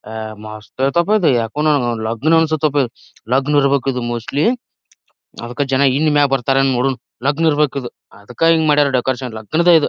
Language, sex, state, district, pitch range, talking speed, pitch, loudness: Kannada, male, Karnataka, Bijapur, 125-155 Hz, 160 wpm, 135 Hz, -17 LUFS